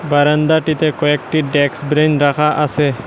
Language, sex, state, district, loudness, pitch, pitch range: Bengali, male, Assam, Hailakandi, -15 LUFS, 150 Hz, 145-155 Hz